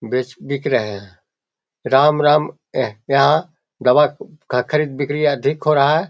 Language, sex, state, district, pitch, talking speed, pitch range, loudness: Hindi, male, Bihar, Jahanabad, 140 Hz, 130 wpm, 125-150 Hz, -17 LUFS